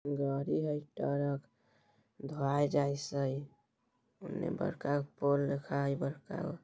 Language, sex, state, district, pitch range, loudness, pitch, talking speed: Bajjika, female, Bihar, Vaishali, 140-145 Hz, -35 LUFS, 140 Hz, 135 wpm